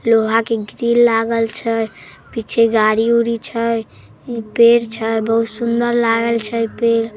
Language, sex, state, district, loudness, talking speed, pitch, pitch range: Maithili, female, Bihar, Samastipur, -16 LUFS, 135 wpm, 230 Hz, 225-235 Hz